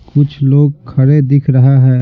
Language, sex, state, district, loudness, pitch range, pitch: Hindi, male, Bihar, Patna, -10 LUFS, 135-145 Hz, 140 Hz